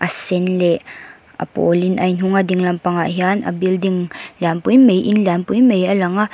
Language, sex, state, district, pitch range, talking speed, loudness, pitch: Mizo, female, Mizoram, Aizawl, 180-195 Hz, 235 wpm, -16 LUFS, 185 Hz